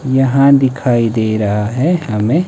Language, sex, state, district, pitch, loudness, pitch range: Hindi, male, Himachal Pradesh, Shimla, 130 Hz, -13 LUFS, 110-140 Hz